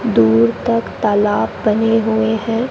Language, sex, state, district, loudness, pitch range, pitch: Hindi, male, Rajasthan, Bikaner, -15 LUFS, 205-225 Hz, 220 Hz